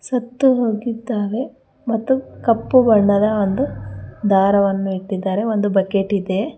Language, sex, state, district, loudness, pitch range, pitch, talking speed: Kannada, female, Karnataka, Bangalore, -18 LUFS, 195-235 Hz, 205 Hz, 100 wpm